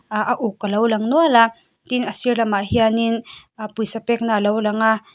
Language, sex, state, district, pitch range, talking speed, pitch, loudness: Mizo, female, Mizoram, Aizawl, 215-230 Hz, 235 wpm, 225 Hz, -19 LUFS